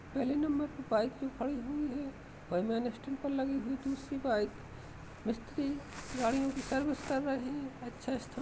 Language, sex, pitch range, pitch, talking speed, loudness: Awadhi, female, 250-275 Hz, 270 Hz, 180 wpm, -36 LUFS